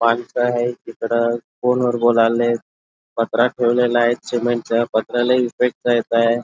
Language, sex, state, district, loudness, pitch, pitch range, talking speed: Marathi, male, Karnataka, Belgaum, -18 LUFS, 120 Hz, 115-120 Hz, 120 wpm